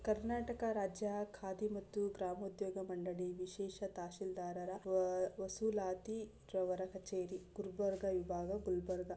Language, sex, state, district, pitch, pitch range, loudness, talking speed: Kannada, female, Karnataka, Gulbarga, 190 Hz, 185-205 Hz, -42 LUFS, 90 wpm